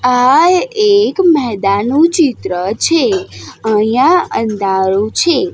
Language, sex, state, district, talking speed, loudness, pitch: Gujarati, female, Gujarat, Gandhinagar, 85 wpm, -12 LUFS, 260 Hz